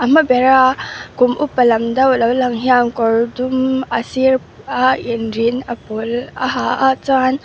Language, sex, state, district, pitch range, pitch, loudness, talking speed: Mizo, female, Mizoram, Aizawl, 235-260 Hz, 250 Hz, -15 LUFS, 175 wpm